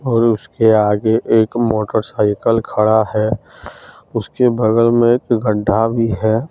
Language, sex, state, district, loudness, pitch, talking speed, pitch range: Hindi, male, Jharkhand, Deoghar, -15 LUFS, 110 Hz, 130 wpm, 110-115 Hz